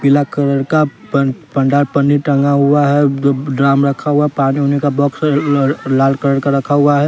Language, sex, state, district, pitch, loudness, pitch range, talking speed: Hindi, male, Bihar, West Champaran, 140 Hz, -14 LUFS, 140-145 Hz, 180 wpm